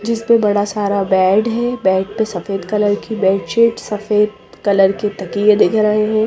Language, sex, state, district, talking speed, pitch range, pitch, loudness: Hindi, female, Bihar, Patna, 180 wpm, 195-215 Hz, 210 Hz, -16 LUFS